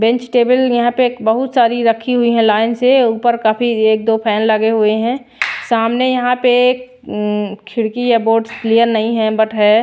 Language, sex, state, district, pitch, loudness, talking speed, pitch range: Hindi, female, Bihar, Patna, 230 Hz, -14 LUFS, 185 wpm, 220-245 Hz